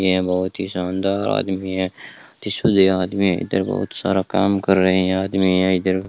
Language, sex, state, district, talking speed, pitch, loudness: Hindi, male, Rajasthan, Bikaner, 195 wpm, 95 Hz, -19 LUFS